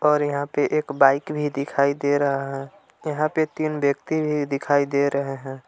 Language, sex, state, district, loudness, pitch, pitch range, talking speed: Hindi, male, Jharkhand, Palamu, -22 LUFS, 145 Hz, 140-150 Hz, 200 wpm